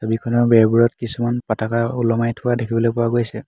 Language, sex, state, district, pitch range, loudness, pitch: Assamese, male, Assam, Hailakandi, 115-120 Hz, -18 LUFS, 115 Hz